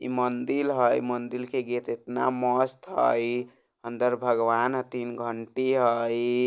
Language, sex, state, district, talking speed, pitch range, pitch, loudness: Bajjika, male, Bihar, Vaishali, 130 wpm, 120-125 Hz, 125 Hz, -27 LUFS